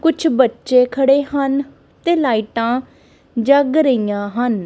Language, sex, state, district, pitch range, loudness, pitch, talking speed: Punjabi, female, Punjab, Kapurthala, 235-285 Hz, -16 LUFS, 260 Hz, 115 wpm